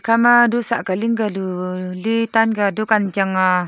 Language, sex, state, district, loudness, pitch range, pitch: Wancho, female, Arunachal Pradesh, Longding, -18 LUFS, 185-230 Hz, 215 Hz